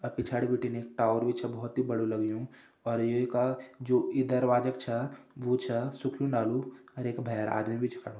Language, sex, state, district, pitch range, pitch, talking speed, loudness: Hindi, male, Uttarakhand, Uttarkashi, 115-130 Hz, 120 Hz, 225 wpm, -31 LUFS